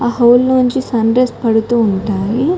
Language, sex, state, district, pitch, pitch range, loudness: Telugu, female, Telangana, Karimnagar, 240 Hz, 225-250 Hz, -13 LUFS